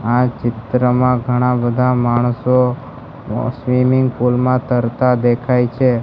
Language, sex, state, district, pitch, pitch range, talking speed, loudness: Gujarati, male, Gujarat, Gandhinagar, 125 Hz, 120-125 Hz, 110 wpm, -16 LUFS